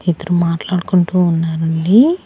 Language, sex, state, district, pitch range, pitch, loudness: Telugu, female, Andhra Pradesh, Annamaya, 165-185 Hz, 175 Hz, -15 LUFS